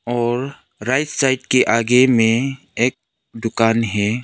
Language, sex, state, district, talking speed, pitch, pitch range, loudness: Hindi, male, Arunachal Pradesh, Lower Dibang Valley, 125 wpm, 120 Hz, 115-130 Hz, -17 LUFS